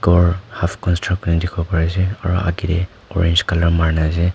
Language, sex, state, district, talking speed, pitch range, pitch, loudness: Nagamese, male, Nagaland, Kohima, 195 wpm, 85-90 Hz, 85 Hz, -18 LUFS